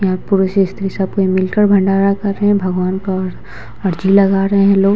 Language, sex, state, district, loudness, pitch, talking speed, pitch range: Hindi, female, Bihar, Vaishali, -15 LUFS, 195 Hz, 205 wpm, 190-200 Hz